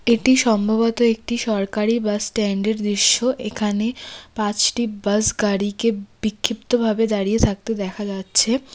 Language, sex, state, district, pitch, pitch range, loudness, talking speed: Bengali, female, West Bengal, Cooch Behar, 220 Hz, 205-235 Hz, -20 LUFS, 95 wpm